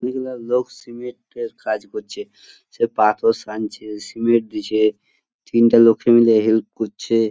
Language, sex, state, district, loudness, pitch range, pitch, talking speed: Bengali, male, West Bengal, Purulia, -18 LUFS, 110-125 Hz, 115 Hz, 150 wpm